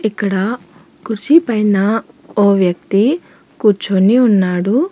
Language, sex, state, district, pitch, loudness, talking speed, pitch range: Telugu, female, Telangana, Hyderabad, 210 Hz, -14 LUFS, 85 wpm, 195-235 Hz